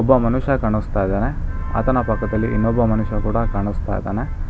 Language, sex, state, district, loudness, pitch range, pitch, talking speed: Kannada, male, Karnataka, Bangalore, -20 LUFS, 100-115 Hz, 110 Hz, 145 wpm